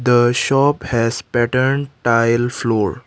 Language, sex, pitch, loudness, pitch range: English, male, 120 Hz, -17 LUFS, 115-135 Hz